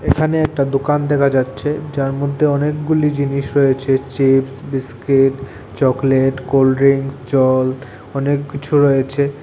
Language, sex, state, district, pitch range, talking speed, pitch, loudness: Bengali, male, Tripura, West Tripura, 135-145 Hz, 110 wpm, 135 Hz, -16 LUFS